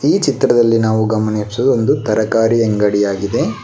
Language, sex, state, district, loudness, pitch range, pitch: Kannada, male, Karnataka, Bangalore, -15 LUFS, 105-115 Hz, 110 Hz